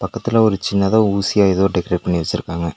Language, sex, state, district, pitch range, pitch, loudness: Tamil, male, Tamil Nadu, Nilgiris, 90-110 Hz, 95 Hz, -17 LUFS